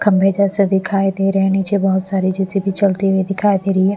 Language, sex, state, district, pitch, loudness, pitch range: Hindi, female, Bihar, Patna, 195 Hz, -16 LUFS, 190-200 Hz